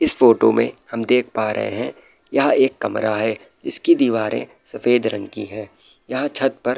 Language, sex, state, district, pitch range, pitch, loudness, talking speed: Hindi, male, Bihar, Saharsa, 110-135 Hz, 120 Hz, -19 LUFS, 195 wpm